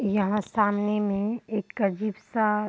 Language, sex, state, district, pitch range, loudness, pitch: Hindi, female, Bihar, Muzaffarpur, 205-215 Hz, -27 LUFS, 210 Hz